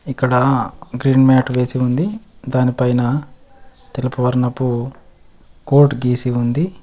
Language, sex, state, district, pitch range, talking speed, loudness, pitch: Telugu, male, Telangana, Adilabad, 125-135 Hz, 105 wpm, -17 LUFS, 130 Hz